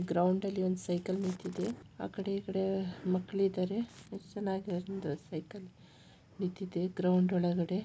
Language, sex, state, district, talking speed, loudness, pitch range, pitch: Kannada, female, Karnataka, Shimoga, 90 wpm, -35 LUFS, 180-195 Hz, 185 Hz